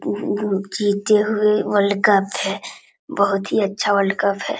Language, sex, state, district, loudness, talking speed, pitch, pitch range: Hindi, male, Bihar, Supaul, -19 LUFS, 155 wpm, 200 Hz, 200-210 Hz